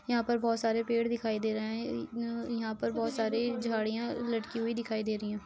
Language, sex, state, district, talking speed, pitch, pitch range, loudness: Hindi, female, Uttar Pradesh, Etah, 240 wpm, 230 Hz, 220-235 Hz, -33 LUFS